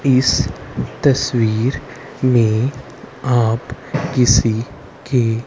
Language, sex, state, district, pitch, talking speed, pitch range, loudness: Hindi, male, Haryana, Rohtak, 125 Hz, 65 wpm, 115-135 Hz, -17 LUFS